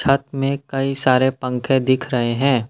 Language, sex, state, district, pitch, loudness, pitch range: Hindi, male, Assam, Kamrup Metropolitan, 130 Hz, -19 LUFS, 125-135 Hz